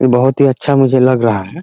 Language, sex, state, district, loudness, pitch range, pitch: Hindi, male, Bihar, Muzaffarpur, -12 LUFS, 125-135 Hz, 130 Hz